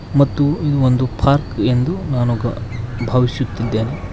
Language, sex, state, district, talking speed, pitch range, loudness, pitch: Kannada, male, Karnataka, Koppal, 115 wpm, 115-140 Hz, -18 LUFS, 125 Hz